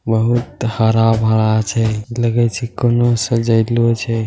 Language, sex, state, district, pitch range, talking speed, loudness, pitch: Angika, male, Bihar, Bhagalpur, 110-120 Hz, 125 wpm, -16 LUFS, 115 Hz